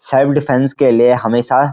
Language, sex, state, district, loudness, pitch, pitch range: Hindi, male, Uttarakhand, Uttarkashi, -13 LUFS, 130 Hz, 120-140 Hz